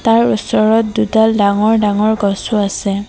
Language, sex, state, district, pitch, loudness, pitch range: Assamese, female, Assam, Kamrup Metropolitan, 215 Hz, -14 LUFS, 205-220 Hz